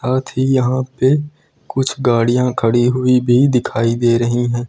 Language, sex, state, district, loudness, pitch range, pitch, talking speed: Hindi, male, Uttar Pradesh, Lucknow, -16 LUFS, 120-130 Hz, 125 Hz, 155 wpm